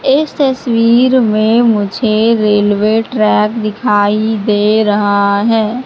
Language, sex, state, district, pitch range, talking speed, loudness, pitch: Hindi, female, Madhya Pradesh, Katni, 210-230 Hz, 100 wpm, -11 LUFS, 215 Hz